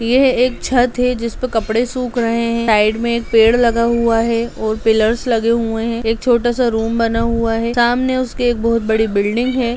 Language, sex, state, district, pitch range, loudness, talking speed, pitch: Hindi, female, Bihar, Gaya, 225-245 Hz, -16 LUFS, 215 wpm, 235 Hz